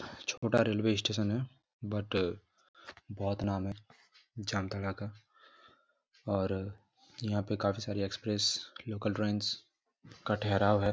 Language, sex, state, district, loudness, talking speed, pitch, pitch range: Hindi, male, Jharkhand, Jamtara, -34 LUFS, 110 wpm, 105 Hz, 100-110 Hz